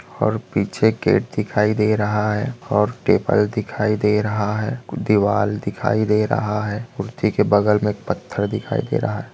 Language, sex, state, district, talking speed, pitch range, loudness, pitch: Hindi, male, Maharashtra, Aurangabad, 180 wpm, 105-110 Hz, -20 LUFS, 105 Hz